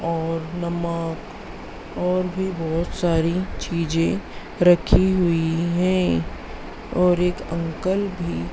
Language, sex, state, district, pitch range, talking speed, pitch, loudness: Hindi, female, Madhya Pradesh, Dhar, 165-180 Hz, 100 wpm, 170 Hz, -22 LUFS